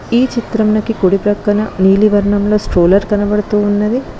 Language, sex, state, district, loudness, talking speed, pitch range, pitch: Telugu, female, Telangana, Mahabubabad, -13 LUFS, 130 wpm, 205-215 Hz, 210 Hz